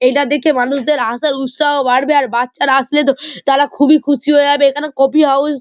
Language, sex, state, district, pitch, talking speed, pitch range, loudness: Bengali, male, West Bengal, Malda, 285 Hz, 190 wpm, 270-295 Hz, -13 LUFS